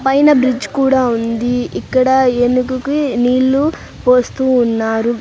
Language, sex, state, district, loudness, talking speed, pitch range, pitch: Telugu, female, Andhra Pradesh, Sri Satya Sai, -14 LUFS, 115 wpm, 245-265 Hz, 255 Hz